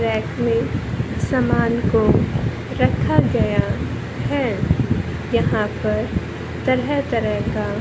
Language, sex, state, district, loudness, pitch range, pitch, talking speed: Hindi, male, Haryana, Charkhi Dadri, -20 LUFS, 110-125 Hz, 120 Hz, 90 wpm